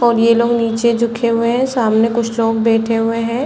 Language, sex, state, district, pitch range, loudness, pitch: Hindi, female, Chhattisgarh, Bastar, 225-235 Hz, -15 LUFS, 230 Hz